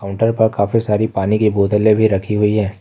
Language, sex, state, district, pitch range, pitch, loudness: Hindi, male, Jharkhand, Ranchi, 100-110 Hz, 105 Hz, -16 LUFS